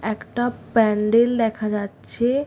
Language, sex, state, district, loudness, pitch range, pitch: Bengali, female, West Bengal, Paschim Medinipur, -21 LUFS, 210-240 Hz, 225 Hz